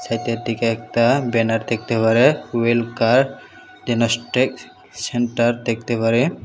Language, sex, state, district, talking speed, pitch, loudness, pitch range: Bengali, male, Tripura, Unakoti, 110 wpm, 115 Hz, -19 LUFS, 115-120 Hz